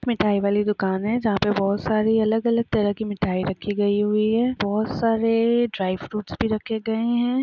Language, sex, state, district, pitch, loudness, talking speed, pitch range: Hindi, female, Chhattisgarh, Raigarh, 215 Hz, -22 LUFS, 195 wpm, 205-225 Hz